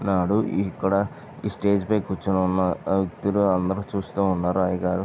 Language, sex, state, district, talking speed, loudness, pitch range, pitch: Telugu, male, Andhra Pradesh, Chittoor, 165 wpm, -24 LUFS, 95-100 Hz, 95 Hz